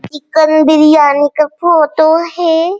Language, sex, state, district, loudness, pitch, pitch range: Hindi, female, Chhattisgarh, Balrampur, -10 LUFS, 310 Hz, 305-330 Hz